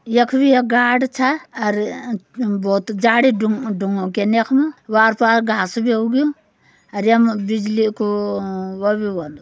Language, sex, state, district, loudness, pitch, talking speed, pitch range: Garhwali, female, Uttarakhand, Uttarkashi, -18 LUFS, 220 Hz, 170 wpm, 205-240 Hz